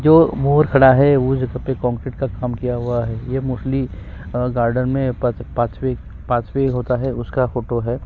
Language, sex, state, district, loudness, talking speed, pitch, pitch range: Hindi, male, Chhattisgarh, Kabirdham, -19 LUFS, 180 wpm, 125 Hz, 120-135 Hz